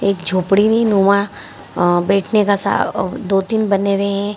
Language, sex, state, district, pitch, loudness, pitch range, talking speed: Hindi, female, Bihar, Lakhisarai, 200 Hz, -16 LUFS, 195-205 Hz, 165 wpm